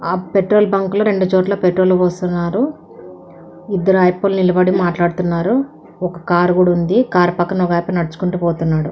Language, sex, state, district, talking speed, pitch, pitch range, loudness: Telugu, female, Andhra Pradesh, Anantapur, 150 wpm, 180 Hz, 175-190 Hz, -16 LUFS